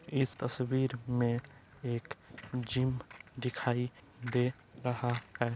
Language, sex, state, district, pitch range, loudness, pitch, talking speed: Hindi, male, Bihar, East Champaran, 120-130 Hz, -35 LUFS, 125 Hz, 95 wpm